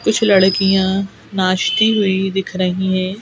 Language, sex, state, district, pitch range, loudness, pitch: Hindi, female, Madhya Pradesh, Bhopal, 190-195 Hz, -16 LUFS, 195 Hz